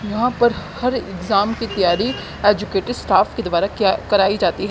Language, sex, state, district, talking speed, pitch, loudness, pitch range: Hindi, female, Haryana, Jhajjar, 180 wpm, 205 Hz, -18 LUFS, 200-235 Hz